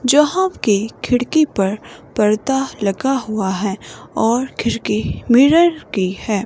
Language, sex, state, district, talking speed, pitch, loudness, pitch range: Hindi, female, Himachal Pradesh, Shimla, 120 wpm, 235 Hz, -17 LUFS, 205-270 Hz